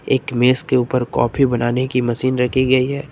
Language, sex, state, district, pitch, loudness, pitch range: Hindi, male, Uttar Pradesh, Lucknow, 130 Hz, -17 LUFS, 125-130 Hz